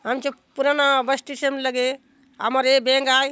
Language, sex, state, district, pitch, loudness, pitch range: Halbi, female, Chhattisgarh, Bastar, 270 Hz, -21 LUFS, 260-275 Hz